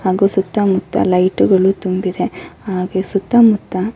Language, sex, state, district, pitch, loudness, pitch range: Kannada, female, Karnataka, Bellary, 190 Hz, -15 LUFS, 185-200 Hz